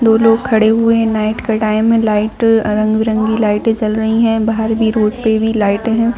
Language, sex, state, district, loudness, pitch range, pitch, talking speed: Hindi, female, Jharkhand, Jamtara, -13 LUFS, 215-225 Hz, 220 Hz, 215 wpm